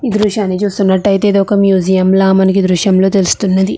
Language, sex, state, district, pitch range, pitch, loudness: Telugu, female, Andhra Pradesh, Chittoor, 190-200 Hz, 195 Hz, -11 LUFS